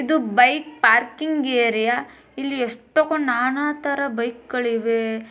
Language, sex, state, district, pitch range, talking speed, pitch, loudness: Kannada, female, Karnataka, Bijapur, 235-295 Hz, 115 wpm, 250 Hz, -20 LUFS